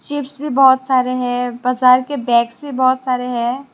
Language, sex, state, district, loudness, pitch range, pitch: Hindi, female, Tripura, West Tripura, -16 LUFS, 245-270 Hz, 255 Hz